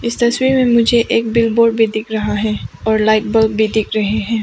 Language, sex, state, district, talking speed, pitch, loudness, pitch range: Hindi, female, Arunachal Pradesh, Papum Pare, 245 wpm, 220 Hz, -15 LUFS, 215-235 Hz